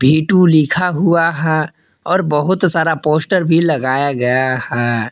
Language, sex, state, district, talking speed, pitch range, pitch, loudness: Hindi, male, Jharkhand, Palamu, 150 wpm, 135-175 Hz, 155 Hz, -14 LUFS